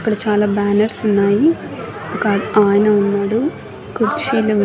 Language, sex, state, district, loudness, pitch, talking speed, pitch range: Telugu, female, Andhra Pradesh, Annamaya, -16 LUFS, 210 Hz, 115 wpm, 205-215 Hz